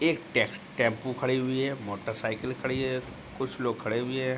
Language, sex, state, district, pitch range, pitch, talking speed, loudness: Hindi, male, Bihar, Begusarai, 115-130 Hz, 130 Hz, 190 wpm, -30 LUFS